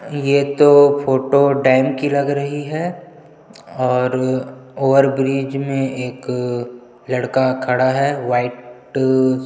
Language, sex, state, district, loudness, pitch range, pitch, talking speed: Hindi, male, Chhattisgarh, Jashpur, -17 LUFS, 130-140 Hz, 135 Hz, 115 wpm